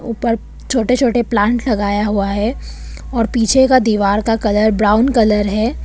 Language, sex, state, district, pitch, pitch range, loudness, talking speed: Hindi, female, Arunachal Pradesh, Papum Pare, 225 Hz, 210-240 Hz, -15 LUFS, 165 wpm